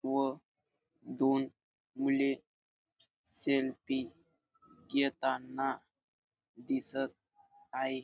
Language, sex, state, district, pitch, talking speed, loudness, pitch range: Marathi, male, Maharashtra, Dhule, 135 Hz, 50 wpm, -35 LUFS, 135-165 Hz